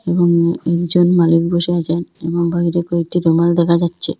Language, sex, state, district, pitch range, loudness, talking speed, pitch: Bengali, female, Assam, Hailakandi, 170-175 Hz, -15 LUFS, 155 wpm, 170 Hz